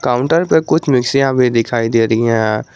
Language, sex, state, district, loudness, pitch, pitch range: Hindi, male, Jharkhand, Garhwa, -14 LUFS, 125 Hz, 115-135 Hz